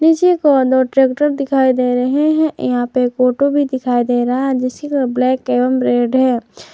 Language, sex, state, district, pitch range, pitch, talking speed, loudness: Hindi, female, Jharkhand, Garhwa, 250-280 Hz, 260 Hz, 195 wpm, -15 LUFS